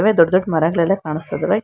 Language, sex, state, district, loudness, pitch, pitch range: Kannada, female, Karnataka, Bangalore, -17 LUFS, 170 Hz, 160-195 Hz